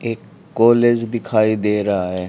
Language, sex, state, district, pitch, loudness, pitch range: Hindi, male, Haryana, Rohtak, 110 Hz, -17 LUFS, 105-120 Hz